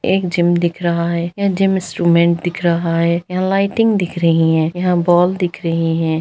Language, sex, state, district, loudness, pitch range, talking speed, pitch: Hindi, female, Bihar, Gaya, -16 LUFS, 170-180 Hz, 205 wpm, 175 Hz